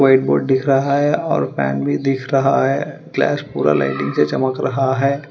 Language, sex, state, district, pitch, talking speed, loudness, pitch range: Hindi, female, Telangana, Hyderabad, 135 Hz, 205 wpm, -17 LUFS, 100-135 Hz